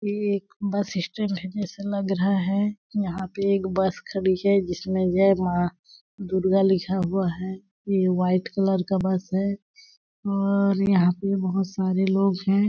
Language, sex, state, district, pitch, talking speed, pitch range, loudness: Hindi, female, Chhattisgarh, Balrampur, 195 Hz, 160 wpm, 185-200 Hz, -24 LUFS